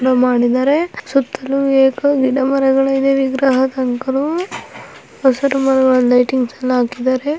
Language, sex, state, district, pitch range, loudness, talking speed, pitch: Kannada, female, Karnataka, Dharwad, 255-275 Hz, -15 LUFS, 90 wpm, 265 Hz